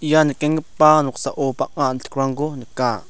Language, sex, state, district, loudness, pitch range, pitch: Garo, male, Meghalaya, South Garo Hills, -19 LUFS, 135-155 Hz, 145 Hz